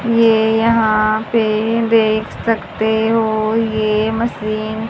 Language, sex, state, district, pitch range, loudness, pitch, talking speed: Hindi, male, Haryana, Charkhi Dadri, 215-230 Hz, -16 LUFS, 220 Hz, 110 wpm